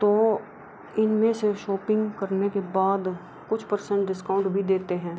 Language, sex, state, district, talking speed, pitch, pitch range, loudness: Hindi, female, Bihar, Kishanganj, 150 wpm, 200 Hz, 190-215 Hz, -25 LUFS